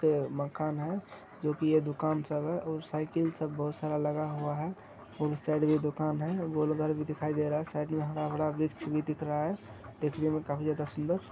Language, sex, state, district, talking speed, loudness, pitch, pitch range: Hindi, male, Bihar, Kishanganj, 220 wpm, -33 LUFS, 155 Hz, 150-155 Hz